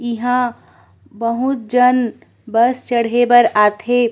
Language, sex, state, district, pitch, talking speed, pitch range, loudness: Chhattisgarhi, female, Chhattisgarh, Korba, 240 Hz, 100 wpm, 230-250 Hz, -16 LUFS